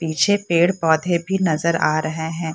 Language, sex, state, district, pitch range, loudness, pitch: Hindi, female, Bihar, Purnia, 160-180 Hz, -19 LUFS, 165 Hz